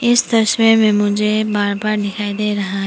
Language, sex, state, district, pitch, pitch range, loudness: Hindi, female, Arunachal Pradesh, Papum Pare, 210 Hz, 205-220 Hz, -16 LUFS